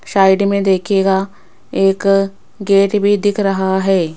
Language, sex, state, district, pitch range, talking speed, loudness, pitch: Hindi, female, Rajasthan, Jaipur, 190-200 Hz, 130 wpm, -14 LUFS, 195 Hz